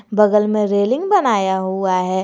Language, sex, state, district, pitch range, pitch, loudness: Hindi, male, Jharkhand, Garhwa, 190-210 Hz, 205 Hz, -16 LUFS